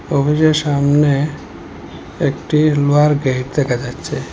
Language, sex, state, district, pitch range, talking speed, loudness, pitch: Bengali, male, Assam, Hailakandi, 125-150 Hz, 95 wpm, -16 LUFS, 145 Hz